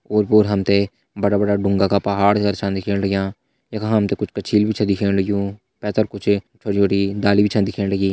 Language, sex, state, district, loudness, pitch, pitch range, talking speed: Hindi, male, Uttarakhand, Tehri Garhwal, -19 LUFS, 100 Hz, 100-105 Hz, 185 wpm